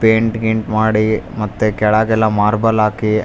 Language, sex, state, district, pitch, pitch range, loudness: Kannada, male, Karnataka, Raichur, 110 Hz, 105-110 Hz, -15 LUFS